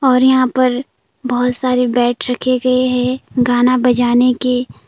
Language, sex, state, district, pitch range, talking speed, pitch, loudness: Hindi, female, Arunachal Pradesh, Papum Pare, 245-255 Hz, 145 wpm, 250 Hz, -14 LUFS